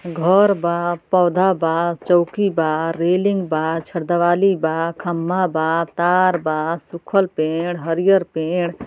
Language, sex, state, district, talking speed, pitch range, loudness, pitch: Bhojpuri, female, Uttar Pradesh, Ghazipur, 130 wpm, 165-180 Hz, -18 LUFS, 170 Hz